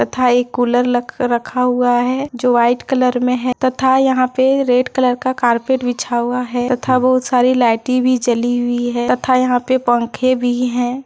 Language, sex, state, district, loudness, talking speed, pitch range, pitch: Hindi, female, Jharkhand, Deoghar, -15 LUFS, 195 wpm, 245-255 Hz, 250 Hz